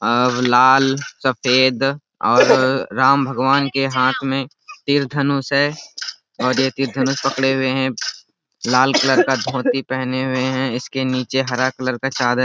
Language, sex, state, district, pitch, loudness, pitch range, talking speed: Hindi, male, Jharkhand, Sahebganj, 130 Hz, -18 LUFS, 130-135 Hz, 150 wpm